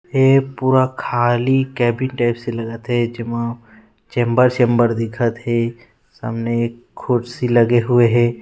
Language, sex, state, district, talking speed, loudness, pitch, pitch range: Chhattisgarhi, male, Chhattisgarh, Rajnandgaon, 130 wpm, -18 LUFS, 120 Hz, 115-125 Hz